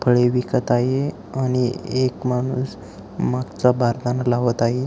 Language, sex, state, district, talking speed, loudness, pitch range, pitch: Marathi, male, Maharashtra, Aurangabad, 125 wpm, -21 LUFS, 120-130 Hz, 125 Hz